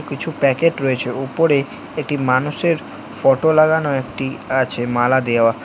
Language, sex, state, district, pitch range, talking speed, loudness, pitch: Bengali, male, West Bengal, Alipurduar, 130-160 Hz, 125 wpm, -18 LUFS, 140 Hz